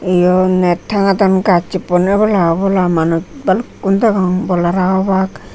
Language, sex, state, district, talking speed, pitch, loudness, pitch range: Chakma, female, Tripura, Unakoti, 140 wpm, 185 Hz, -14 LUFS, 180-195 Hz